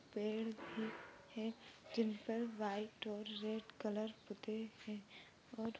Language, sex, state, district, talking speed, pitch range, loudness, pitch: Hindi, female, Maharashtra, Nagpur, 115 wpm, 215-225 Hz, -45 LUFS, 220 Hz